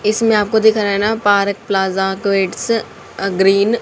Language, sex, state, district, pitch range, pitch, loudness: Hindi, female, Haryana, Charkhi Dadri, 195-220 Hz, 200 Hz, -15 LUFS